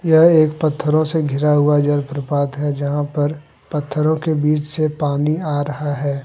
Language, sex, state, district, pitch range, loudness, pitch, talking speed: Hindi, male, Jharkhand, Deoghar, 145-155 Hz, -18 LUFS, 150 Hz, 180 wpm